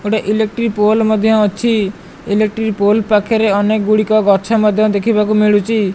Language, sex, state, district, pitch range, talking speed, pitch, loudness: Odia, male, Odisha, Malkangiri, 210-220 Hz, 140 wpm, 215 Hz, -14 LUFS